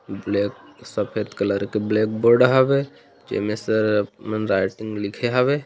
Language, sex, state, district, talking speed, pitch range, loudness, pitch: Chhattisgarhi, male, Chhattisgarh, Rajnandgaon, 150 wpm, 100-120 Hz, -21 LUFS, 110 Hz